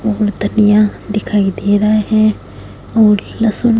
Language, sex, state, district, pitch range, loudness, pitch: Hindi, female, Punjab, Fazilka, 205-215 Hz, -13 LUFS, 210 Hz